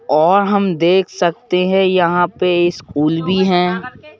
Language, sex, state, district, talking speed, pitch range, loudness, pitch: Hindi, male, Madhya Pradesh, Bhopal, 145 wpm, 175-190 Hz, -15 LUFS, 180 Hz